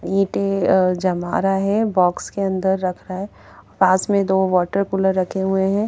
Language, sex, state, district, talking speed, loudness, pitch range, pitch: Hindi, female, Haryana, Charkhi Dadri, 185 wpm, -19 LUFS, 185-195 Hz, 190 Hz